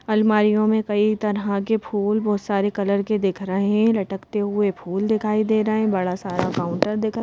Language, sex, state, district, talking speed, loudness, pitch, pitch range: Hindi, female, Madhya Pradesh, Bhopal, 205 wpm, -21 LUFS, 210 Hz, 200-215 Hz